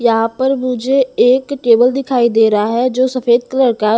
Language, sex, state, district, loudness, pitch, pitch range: Hindi, female, Bihar, Patna, -13 LUFS, 250 Hz, 230-260 Hz